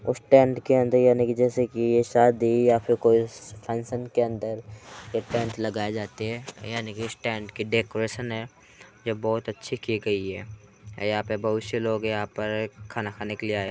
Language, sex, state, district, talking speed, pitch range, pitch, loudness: Hindi, male, Uttar Pradesh, Hamirpur, 190 wpm, 105-120 Hz, 110 Hz, -25 LUFS